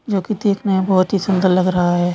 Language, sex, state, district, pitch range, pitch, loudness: Hindi, male, Bihar, Gaya, 185-200 Hz, 190 Hz, -17 LUFS